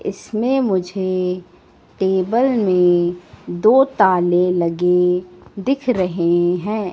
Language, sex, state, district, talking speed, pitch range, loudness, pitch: Hindi, female, Madhya Pradesh, Katni, 85 wpm, 180-215 Hz, -17 LUFS, 180 Hz